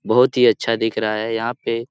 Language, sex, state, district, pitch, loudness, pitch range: Hindi, male, Bihar, Lakhisarai, 115 Hz, -19 LUFS, 115-125 Hz